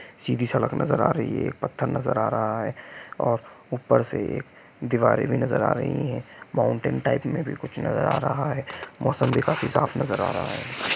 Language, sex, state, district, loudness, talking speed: Hindi, male, Jharkhand, Sahebganj, -25 LUFS, 215 wpm